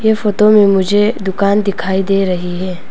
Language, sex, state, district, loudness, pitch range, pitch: Hindi, female, Arunachal Pradesh, Papum Pare, -13 LUFS, 185-210 Hz, 195 Hz